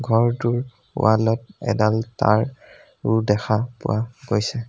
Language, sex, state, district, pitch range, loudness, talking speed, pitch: Assamese, male, Assam, Sonitpur, 110-125 Hz, -22 LUFS, 100 wpm, 115 Hz